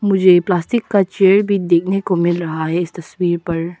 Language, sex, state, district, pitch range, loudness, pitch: Hindi, female, Arunachal Pradesh, Papum Pare, 170-195 Hz, -16 LUFS, 180 Hz